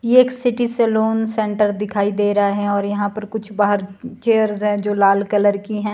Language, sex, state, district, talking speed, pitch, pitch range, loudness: Hindi, female, Himachal Pradesh, Shimla, 210 wpm, 210 Hz, 205-220 Hz, -18 LUFS